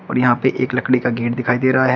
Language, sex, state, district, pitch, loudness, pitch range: Hindi, male, Uttar Pradesh, Shamli, 125 Hz, -18 LUFS, 125-130 Hz